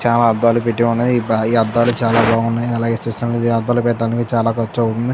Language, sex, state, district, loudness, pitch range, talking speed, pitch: Telugu, male, Andhra Pradesh, Chittoor, -16 LUFS, 115-120 Hz, 185 wpm, 115 Hz